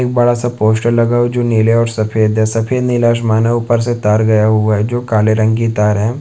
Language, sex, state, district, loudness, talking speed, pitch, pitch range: Hindi, male, Chhattisgarh, Balrampur, -13 LUFS, 280 wpm, 115 Hz, 110-120 Hz